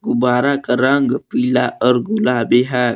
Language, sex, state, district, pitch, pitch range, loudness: Hindi, male, Jharkhand, Palamu, 130 Hz, 125-175 Hz, -16 LUFS